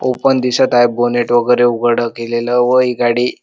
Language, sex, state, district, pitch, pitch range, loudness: Marathi, male, Maharashtra, Dhule, 120 Hz, 120-125 Hz, -13 LUFS